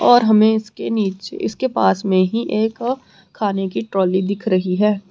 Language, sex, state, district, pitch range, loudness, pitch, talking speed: Hindi, female, Haryana, Rohtak, 185-220 Hz, -18 LUFS, 195 Hz, 175 wpm